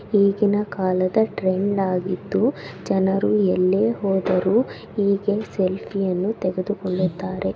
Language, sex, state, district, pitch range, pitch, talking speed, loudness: Kannada, female, Karnataka, Raichur, 185-205 Hz, 195 Hz, 85 wpm, -21 LUFS